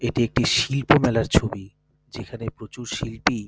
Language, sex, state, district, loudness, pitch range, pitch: Bengali, male, West Bengal, North 24 Parganas, -22 LUFS, 110-125 Hz, 120 Hz